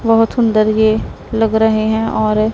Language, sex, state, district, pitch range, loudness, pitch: Hindi, female, Punjab, Pathankot, 215-225 Hz, -14 LUFS, 220 Hz